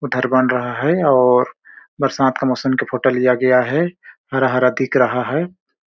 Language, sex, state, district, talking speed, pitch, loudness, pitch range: Hindi, male, Chhattisgarh, Balrampur, 175 wpm, 130 Hz, -17 LUFS, 125-140 Hz